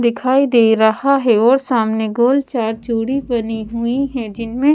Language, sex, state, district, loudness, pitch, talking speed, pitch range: Hindi, female, Bihar, Patna, -16 LUFS, 235 Hz, 165 wpm, 225-265 Hz